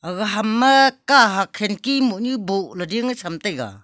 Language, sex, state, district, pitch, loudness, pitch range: Wancho, female, Arunachal Pradesh, Longding, 215 Hz, -19 LUFS, 190-255 Hz